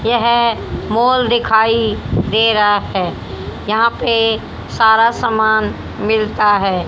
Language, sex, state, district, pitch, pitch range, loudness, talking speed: Hindi, female, Haryana, Jhajjar, 220 Hz, 215-230 Hz, -14 LUFS, 105 wpm